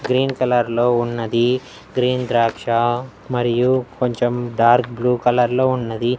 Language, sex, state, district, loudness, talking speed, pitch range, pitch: Telugu, male, Andhra Pradesh, Annamaya, -19 LUFS, 105 wpm, 120-125 Hz, 120 Hz